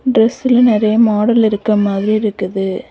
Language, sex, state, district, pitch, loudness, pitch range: Tamil, female, Tamil Nadu, Kanyakumari, 215 Hz, -14 LUFS, 205-230 Hz